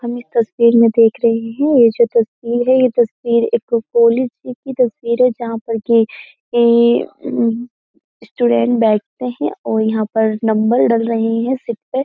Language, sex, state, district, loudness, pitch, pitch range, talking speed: Hindi, female, Uttar Pradesh, Jyotiba Phule Nagar, -15 LUFS, 235 Hz, 225-240 Hz, 175 wpm